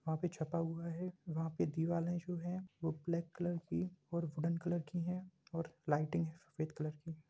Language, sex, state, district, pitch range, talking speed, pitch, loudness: Hindi, male, Bihar, Samastipur, 160-175 Hz, 205 wpm, 170 Hz, -41 LUFS